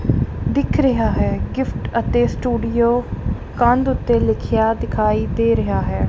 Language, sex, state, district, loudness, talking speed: Punjabi, female, Punjab, Kapurthala, -19 LUFS, 130 wpm